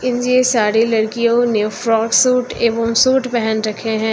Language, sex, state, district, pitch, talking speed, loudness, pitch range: Hindi, female, Uttar Pradesh, Lucknow, 230 Hz, 160 wpm, -15 LUFS, 220-245 Hz